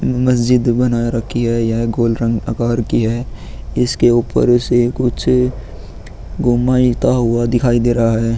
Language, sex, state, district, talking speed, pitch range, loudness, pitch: Hindi, male, Bihar, Vaishali, 165 wpm, 115-120 Hz, -15 LUFS, 120 Hz